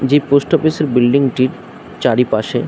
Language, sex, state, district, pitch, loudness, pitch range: Bengali, male, West Bengal, Jhargram, 135 Hz, -15 LUFS, 125-145 Hz